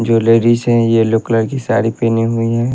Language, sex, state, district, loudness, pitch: Hindi, male, Haryana, Rohtak, -14 LUFS, 115 Hz